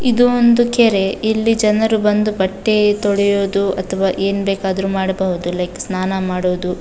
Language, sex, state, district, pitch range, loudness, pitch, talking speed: Kannada, female, Karnataka, Dakshina Kannada, 190-215 Hz, -16 LUFS, 195 Hz, 130 wpm